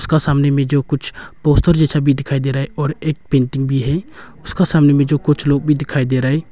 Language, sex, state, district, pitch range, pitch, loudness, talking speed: Hindi, male, Arunachal Pradesh, Longding, 140-150 Hz, 145 Hz, -16 LUFS, 260 wpm